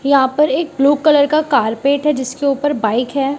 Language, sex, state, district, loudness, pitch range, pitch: Hindi, female, Maharashtra, Mumbai Suburban, -15 LUFS, 270-290 Hz, 280 Hz